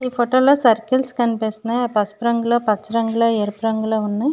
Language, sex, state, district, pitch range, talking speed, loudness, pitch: Telugu, female, Andhra Pradesh, Srikakulam, 220-245 Hz, 180 wpm, -19 LUFS, 230 Hz